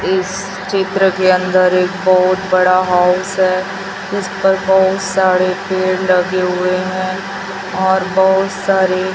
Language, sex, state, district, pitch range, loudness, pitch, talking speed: Hindi, female, Chhattisgarh, Raipur, 185-190 Hz, -14 LUFS, 190 Hz, 140 wpm